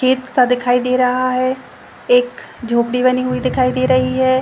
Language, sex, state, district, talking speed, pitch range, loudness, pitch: Hindi, female, Chhattisgarh, Rajnandgaon, 190 wpm, 250-260 Hz, -16 LUFS, 255 Hz